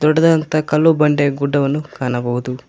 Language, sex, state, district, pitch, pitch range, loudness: Kannada, male, Karnataka, Koppal, 150 Hz, 135-155 Hz, -16 LUFS